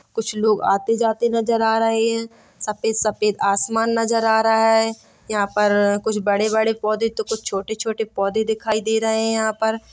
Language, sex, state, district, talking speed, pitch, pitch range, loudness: Hindi, female, Chhattisgarh, Rajnandgaon, 185 wpm, 220 Hz, 215-225 Hz, -20 LUFS